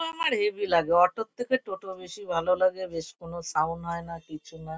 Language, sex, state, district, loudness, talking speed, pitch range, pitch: Bengali, female, West Bengal, Kolkata, -27 LUFS, 190 wpm, 165-220 Hz, 180 Hz